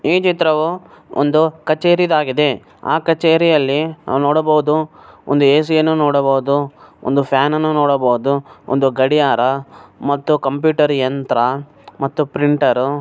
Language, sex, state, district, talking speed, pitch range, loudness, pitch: Kannada, male, Karnataka, Bellary, 115 wpm, 135-155 Hz, -16 LUFS, 145 Hz